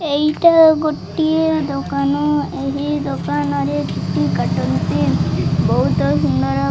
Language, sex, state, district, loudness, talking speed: Odia, female, Odisha, Malkangiri, -17 LUFS, 100 wpm